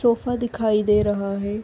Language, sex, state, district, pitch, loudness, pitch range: Hindi, female, Chhattisgarh, Rajnandgaon, 215 Hz, -22 LUFS, 205-235 Hz